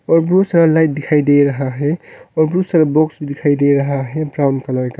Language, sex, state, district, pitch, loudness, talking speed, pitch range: Hindi, male, Arunachal Pradesh, Longding, 150 Hz, -15 LUFS, 230 wpm, 140-160 Hz